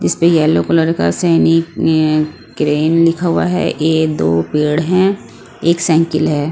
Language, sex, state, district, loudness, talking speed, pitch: Hindi, female, Punjab, Pathankot, -14 LUFS, 165 wpm, 155 Hz